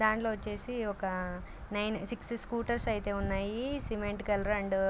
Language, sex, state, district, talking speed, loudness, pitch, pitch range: Telugu, female, Andhra Pradesh, Guntur, 135 wpm, -35 LUFS, 210 Hz, 200-225 Hz